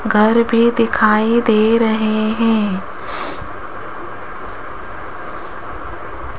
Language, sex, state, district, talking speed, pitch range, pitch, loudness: Hindi, female, Rajasthan, Jaipur, 55 wpm, 215-230 Hz, 220 Hz, -15 LUFS